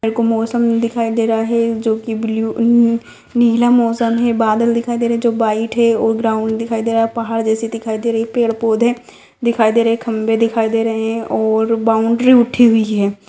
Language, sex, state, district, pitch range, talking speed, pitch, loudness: Hindi, female, Jharkhand, Sahebganj, 225-235 Hz, 220 wpm, 230 Hz, -15 LUFS